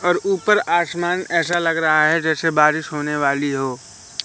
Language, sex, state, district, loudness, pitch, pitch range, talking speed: Hindi, male, Madhya Pradesh, Katni, -18 LUFS, 160 Hz, 150-175 Hz, 170 wpm